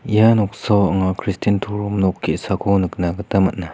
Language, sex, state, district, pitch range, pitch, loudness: Garo, male, Meghalaya, West Garo Hills, 95-105 Hz, 100 Hz, -18 LUFS